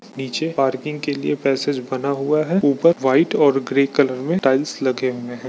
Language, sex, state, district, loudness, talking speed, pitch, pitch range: Hindi, male, Bihar, Bhagalpur, -19 LUFS, 195 wpm, 140 Hz, 130-145 Hz